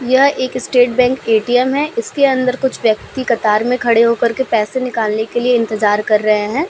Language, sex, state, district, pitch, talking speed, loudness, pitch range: Hindi, female, Bihar, Vaishali, 245 Hz, 215 wpm, -15 LUFS, 220-260 Hz